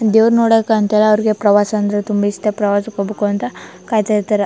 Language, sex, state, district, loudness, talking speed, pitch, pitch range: Kannada, female, Karnataka, Chamarajanagar, -15 LUFS, 175 wpm, 210 Hz, 205-220 Hz